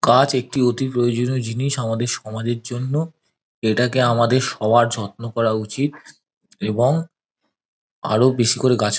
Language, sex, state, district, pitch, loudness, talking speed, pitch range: Bengali, male, West Bengal, Dakshin Dinajpur, 120 Hz, -20 LUFS, 125 wpm, 115-130 Hz